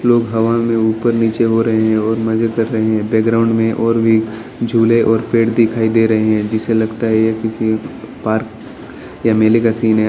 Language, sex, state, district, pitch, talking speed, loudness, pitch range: Hindi, male, Arunachal Pradesh, Lower Dibang Valley, 115 Hz, 210 wpm, -15 LUFS, 110-115 Hz